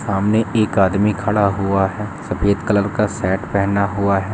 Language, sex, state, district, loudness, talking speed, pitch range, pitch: Hindi, male, Jharkhand, Jamtara, -18 LUFS, 180 wpm, 100-105 Hz, 100 Hz